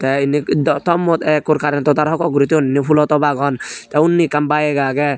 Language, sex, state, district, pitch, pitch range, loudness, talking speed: Chakma, male, Tripura, Unakoti, 150 Hz, 140-155 Hz, -16 LUFS, 220 wpm